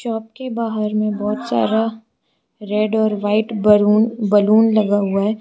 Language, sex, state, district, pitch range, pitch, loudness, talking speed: Hindi, female, Arunachal Pradesh, Lower Dibang Valley, 210-225 Hz, 215 Hz, -17 LUFS, 155 wpm